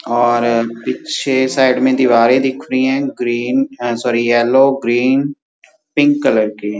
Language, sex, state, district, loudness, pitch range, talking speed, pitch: Hindi, male, Uttar Pradesh, Muzaffarnagar, -15 LUFS, 120-135 Hz, 150 wpm, 130 Hz